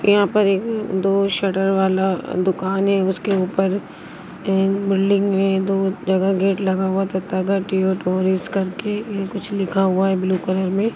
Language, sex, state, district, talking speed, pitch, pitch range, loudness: Hindi, female, Chhattisgarh, Rajnandgaon, 155 wpm, 195 Hz, 190-195 Hz, -20 LUFS